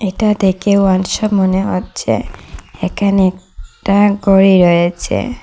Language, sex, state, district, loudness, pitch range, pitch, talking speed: Bengali, female, Assam, Hailakandi, -13 LUFS, 185-200 Hz, 195 Hz, 110 wpm